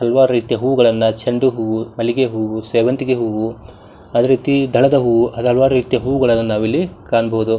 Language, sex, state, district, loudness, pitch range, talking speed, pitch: Kannada, male, Karnataka, Bijapur, -16 LUFS, 110-130 Hz, 140 wpm, 120 Hz